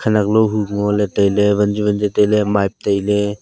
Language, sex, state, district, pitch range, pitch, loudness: Wancho, male, Arunachal Pradesh, Longding, 100-105 Hz, 105 Hz, -16 LUFS